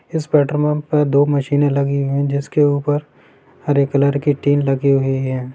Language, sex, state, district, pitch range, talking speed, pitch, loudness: Hindi, male, Bihar, Sitamarhi, 140-145 Hz, 185 wpm, 140 Hz, -17 LUFS